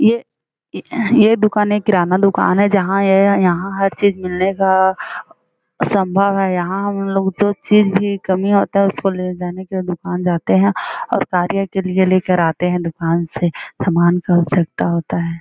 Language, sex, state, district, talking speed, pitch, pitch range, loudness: Hindi, female, Chhattisgarh, Bilaspur, 185 wpm, 190 Hz, 180-200 Hz, -16 LUFS